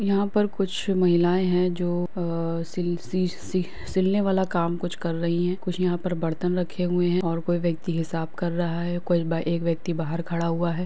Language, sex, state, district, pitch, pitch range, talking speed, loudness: Hindi, female, Uttar Pradesh, Budaun, 175 Hz, 170-180 Hz, 195 wpm, -25 LUFS